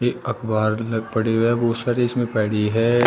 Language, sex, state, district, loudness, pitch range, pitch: Hindi, male, Uttar Pradesh, Shamli, -21 LUFS, 110-120 Hz, 115 Hz